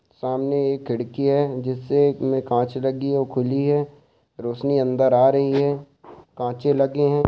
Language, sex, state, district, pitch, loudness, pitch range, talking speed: Hindi, male, Chhattisgarh, Raigarh, 135 Hz, -21 LUFS, 130-140 Hz, 180 wpm